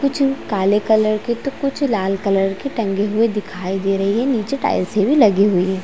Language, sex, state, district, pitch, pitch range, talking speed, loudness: Hindi, female, Chhattisgarh, Raigarh, 210 Hz, 195-265 Hz, 215 wpm, -18 LUFS